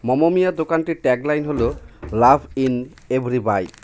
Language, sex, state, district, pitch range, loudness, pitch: Bengali, male, West Bengal, Cooch Behar, 115-150 Hz, -19 LUFS, 130 Hz